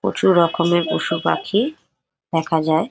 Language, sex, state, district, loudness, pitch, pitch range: Bengali, female, West Bengal, Paschim Medinipur, -19 LUFS, 170 Hz, 160-190 Hz